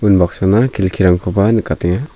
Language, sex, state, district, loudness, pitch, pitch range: Garo, male, Meghalaya, South Garo Hills, -14 LUFS, 95 Hz, 90-105 Hz